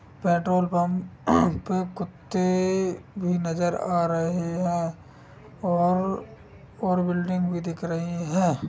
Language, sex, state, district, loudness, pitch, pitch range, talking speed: Hindi, male, Bihar, Sitamarhi, -26 LUFS, 175 Hz, 170-185 Hz, 105 wpm